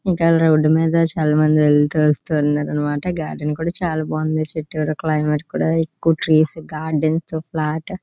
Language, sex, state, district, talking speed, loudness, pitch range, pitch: Telugu, female, Andhra Pradesh, Visakhapatnam, 140 wpm, -18 LUFS, 155-165 Hz, 155 Hz